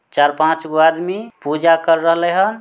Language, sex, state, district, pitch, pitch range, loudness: Maithili, male, Bihar, Samastipur, 165 Hz, 155-175 Hz, -16 LUFS